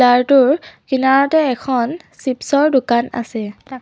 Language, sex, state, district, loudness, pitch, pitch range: Assamese, female, Assam, Sonitpur, -16 LUFS, 265 Hz, 245-280 Hz